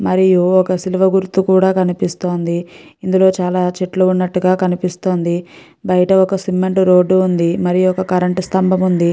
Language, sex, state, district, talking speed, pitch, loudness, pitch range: Telugu, female, Andhra Pradesh, Guntur, 130 wpm, 185 Hz, -15 LUFS, 180-185 Hz